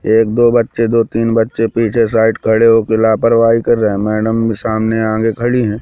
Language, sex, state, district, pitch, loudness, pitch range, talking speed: Hindi, male, Madhya Pradesh, Katni, 115 Hz, -13 LUFS, 110-115 Hz, 215 wpm